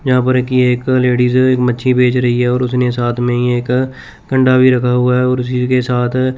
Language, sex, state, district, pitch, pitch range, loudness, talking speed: Hindi, male, Chandigarh, Chandigarh, 125 Hz, 125-130 Hz, -13 LUFS, 235 wpm